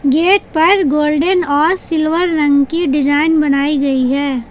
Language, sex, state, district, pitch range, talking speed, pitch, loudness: Hindi, female, Jharkhand, Palamu, 285-330 Hz, 145 wpm, 300 Hz, -13 LUFS